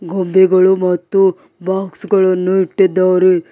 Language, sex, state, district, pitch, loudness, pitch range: Kannada, male, Karnataka, Bidar, 185 Hz, -13 LUFS, 180-190 Hz